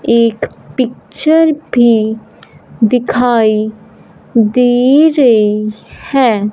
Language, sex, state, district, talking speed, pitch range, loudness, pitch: Hindi, male, Punjab, Fazilka, 65 wpm, 220-255 Hz, -12 LUFS, 235 Hz